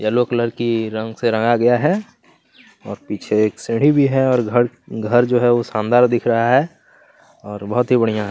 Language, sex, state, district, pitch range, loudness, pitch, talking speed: Hindi, male, Chhattisgarh, Kabirdham, 110-125 Hz, -17 LUFS, 120 Hz, 210 wpm